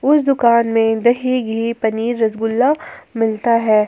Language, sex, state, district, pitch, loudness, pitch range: Hindi, female, Jharkhand, Ranchi, 230 Hz, -16 LUFS, 225-250 Hz